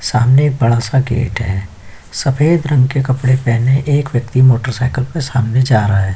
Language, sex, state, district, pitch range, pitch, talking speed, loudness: Hindi, male, Chhattisgarh, Kabirdham, 115-135 Hz, 130 Hz, 185 wpm, -14 LUFS